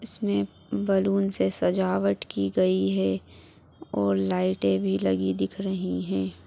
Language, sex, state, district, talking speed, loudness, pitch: Hindi, female, Chhattisgarh, Bilaspur, 140 wpm, -26 LUFS, 95 Hz